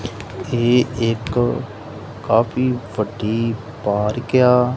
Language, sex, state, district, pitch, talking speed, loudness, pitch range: Punjabi, male, Punjab, Kapurthala, 115 Hz, 75 wpm, -19 LUFS, 110-125 Hz